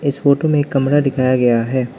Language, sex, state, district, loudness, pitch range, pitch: Hindi, male, Arunachal Pradesh, Lower Dibang Valley, -15 LUFS, 130-145 Hz, 135 Hz